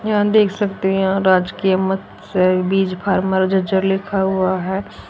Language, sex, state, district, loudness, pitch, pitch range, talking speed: Hindi, female, Haryana, Jhajjar, -18 LUFS, 190 Hz, 185-195 Hz, 140 wpm